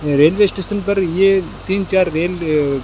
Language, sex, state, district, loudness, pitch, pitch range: Hindi, male, Rajasthan, Bikaner, -16 LUFS, 185 Hz, 155-195 Hz